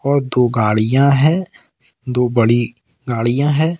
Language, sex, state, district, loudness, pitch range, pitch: Hindi, male, Jharkhand, Ranchi, -16 LUFS, 120-140 Hz, 125 Hz